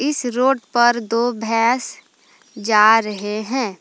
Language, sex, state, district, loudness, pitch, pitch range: Hindi, female, Jharkhand, Palamu, -18 LUFS, 235 Hz, 220-250 Hz